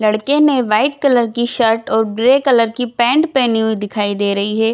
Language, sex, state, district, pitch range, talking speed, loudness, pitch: Hindi, female, Bihar, Jamui, 220-260 Hz, 215 wpm, -14 LUFS, 230 Hz